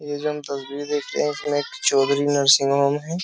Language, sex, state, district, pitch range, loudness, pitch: Hindi, male, Uttar Pradesh, Jyotiba Phule Nagar, 140-145 Hz, -21 LUFS, 145 Hz